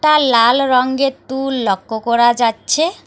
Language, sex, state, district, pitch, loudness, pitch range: Bengali, female, West Bengal, Alipurduar, 255 Hz, -15 LUFS, 235-275 Hz